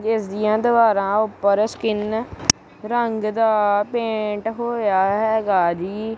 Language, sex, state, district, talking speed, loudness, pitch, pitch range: Punjabi, male, Punjab, Kapurthala, 105 wpm, -20 LUFS, 215 Hz, 205-225 Hz